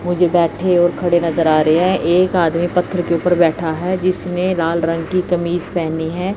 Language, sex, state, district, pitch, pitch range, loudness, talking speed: Hindi, female, Chandigarh, Chandigarh, 175 Hz, 165-180 Hz, -16 LUFS, 205 wpm